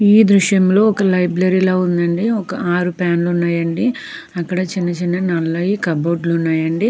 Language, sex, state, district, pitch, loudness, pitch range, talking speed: Telugu, female, Andhra Pradesh, Krishna, 180 Hz, -16 LUFS, 170-190 Hz, 130 wpm